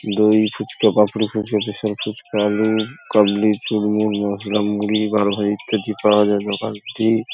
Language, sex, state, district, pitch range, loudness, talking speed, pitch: Bengali, male, West Bengal, Paschim Medinipur, 105-110 Hz, -19 LUFS, 140 wpm, 105 Hz